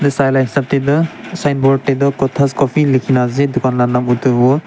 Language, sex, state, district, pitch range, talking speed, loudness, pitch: Nagamese, male, Nagaland, Dimapur, 130-140 Hz, 220 wpm, -14 LUFS, 135 Hz